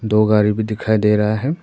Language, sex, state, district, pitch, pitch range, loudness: Hindi, male, Arunachal Pradesh, Papum Pare, 110 Hz, 105-110 Hz, -17 LUFS